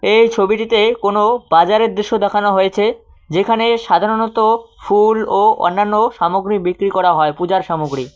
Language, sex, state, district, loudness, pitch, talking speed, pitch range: Bengali, male, West Bengal, Cooch Behar, -15 LUFS, 210 Hz, 130 wpm, 190-225 Hz